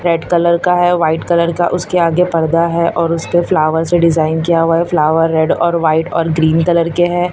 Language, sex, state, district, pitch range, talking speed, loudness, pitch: Hindi, male, Maharashtra, Mumbai Suburban, 165-175 Hz, 230 wpm, -13 LUFS, 170 Hz